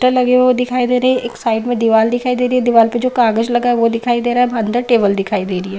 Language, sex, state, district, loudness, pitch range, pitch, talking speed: Hindi, female, Bihar, Madhepura, -14 LUFS, 225-250 Hz, 240 Hz, 340 wpm